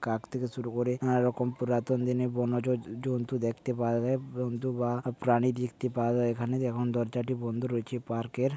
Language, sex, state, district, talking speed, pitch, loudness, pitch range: Bengali, male, West Bengal, Paschim Medinipur, 190 wpm, 125 Hz, -31 LUFS, 120-125 Hz